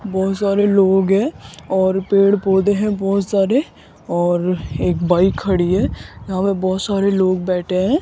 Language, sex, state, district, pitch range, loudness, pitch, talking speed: Hindi, female, Rajasthan, Jaipur, 185-200 Hz, -17 LUFS, 195 Hz, 165 wpm